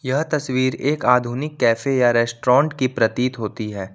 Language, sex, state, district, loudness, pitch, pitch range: Hindi, male, Jharkhand, Ranchi, -20 LUFS, 125 Hz, 115-135 Hz